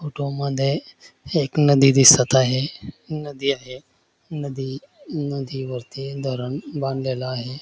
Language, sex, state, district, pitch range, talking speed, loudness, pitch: Marathi, male, Maharashtra, Dhule, 130-145 Hz, 110 wpm, -21 LUFS, 135 Hz